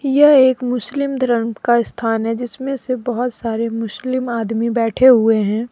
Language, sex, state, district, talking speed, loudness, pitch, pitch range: Hindi, female, Jharkhand, Deoghar, 170 wpm, -17 LUFS, 240 Hz, 225-255 Hz